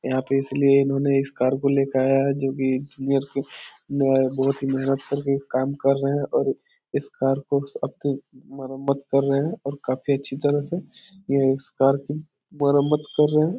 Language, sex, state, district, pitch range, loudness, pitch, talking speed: Hindi, male, Bihar, Supaul, 135-140 Hz, -23 LUFS, 140 Hz, 190 wpm